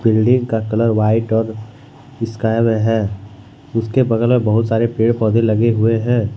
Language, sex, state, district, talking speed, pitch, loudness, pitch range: Hindi, male, Jharkhand, Ranchi, 170 wpm, 115 Hz, -16 LUFS, 110-115 Hz